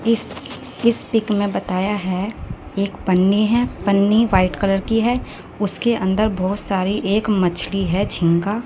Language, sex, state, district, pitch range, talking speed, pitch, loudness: Hindi, female, Haryana, Jhajjar, 190-220 Hz, 160 wpm, 200 Hz, -19 LUFS